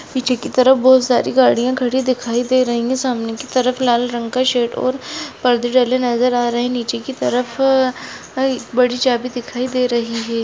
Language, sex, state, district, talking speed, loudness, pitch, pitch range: Hindi, female, Rajasthan, Nagaur, 200 wpm, -17 LUFS, 250 Hz, 240-255 Hz